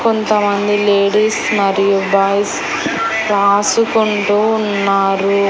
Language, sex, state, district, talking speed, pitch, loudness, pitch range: Telugu, female, Andhra Pradesh, Annamaya, 65 wpm, 205 Hz, -14 LUFS, 200-220 Hz